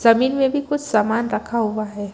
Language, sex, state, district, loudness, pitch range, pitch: Hindi, female, Chhattisgarh, Bilaspur, -20 LUFS, 215-270 Hz, 230 Hz